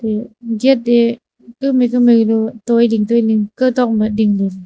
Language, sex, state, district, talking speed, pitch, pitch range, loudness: Wancho, female, Arunachal Pradesh, Longding, 130 wpm, 235 Hz, 220-245 Hz, -14 LUFS